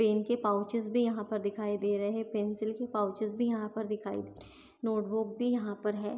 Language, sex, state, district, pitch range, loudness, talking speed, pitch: Hindi, female, Maharashtra, Chandrapur, 205-225 Hz, -33 LUFS, 250 wpm, 215 Hz